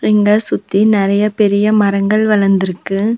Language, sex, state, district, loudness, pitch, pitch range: Tamil, female, Tamil Nadu, Nilgiris, -13 LUFS, 205 Hz, 195-215 Hz